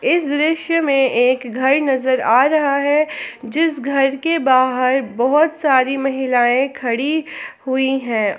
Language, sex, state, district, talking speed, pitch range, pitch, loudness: Hindi, female, Jharkhand, Palamu, 135 wpm, 255-295 Hz, 270 Hz, -17 LUFS